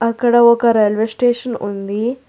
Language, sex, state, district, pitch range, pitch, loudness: Telugu, female, Telangana, Hyderabad, 220-245 Hz, 235 Hz, -15 LUFS